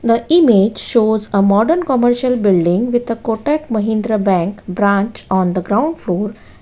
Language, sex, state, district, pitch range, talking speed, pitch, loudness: English, female, Gujarat, Valsad, 200-240 Hz, 155 wpm, 215 Hz, -15 LUFS